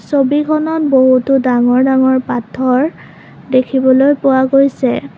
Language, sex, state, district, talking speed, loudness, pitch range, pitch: Assamese, female, Assam, Kamrup Metropolitan, 90 wpm, -12 LUFS, 255-275 Hz, 260 Hz